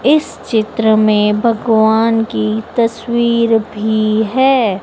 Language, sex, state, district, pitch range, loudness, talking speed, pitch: Hindi, female, Madhya Pradesh, Dhar, 215-235 Hz, -14 LUFS, 100 wpm, 220 Hz